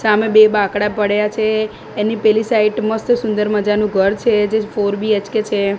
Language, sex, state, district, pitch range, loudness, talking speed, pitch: Gujarati, female, Gujarat, Gandhinagar, 210-220 Hz, -16 LUFS, 175 wpm, 210 Hz